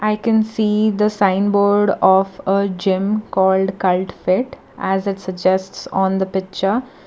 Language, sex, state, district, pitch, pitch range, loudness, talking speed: English, female, Karnataka, Bangalore, 195 Hz, 190-210 Hz, -18 LUFS, 145 wpm